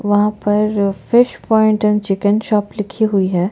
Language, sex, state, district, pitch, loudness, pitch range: Hindi, female, Chhattisgarh, Bastar, 210 Hz, -16 LUFS, 205-215 Hz